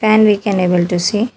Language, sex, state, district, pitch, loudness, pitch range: English, female, Telangana, Hyderabad, 205 Hz, -14 LUFS, 180-215 Hz